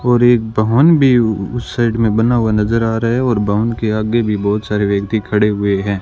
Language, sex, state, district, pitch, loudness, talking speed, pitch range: Hindi, male, Rajasthan, Bikaner, 110 Hz, -15 LUFS, 240 wpm, 105-120 Hz